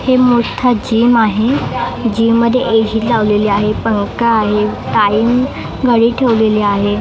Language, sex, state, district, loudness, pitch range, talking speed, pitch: Marathi, female, Maharashtra, Mumbai Suburban, -13 LUFS, 210-240 Hz, 120 wpm, 230 Hz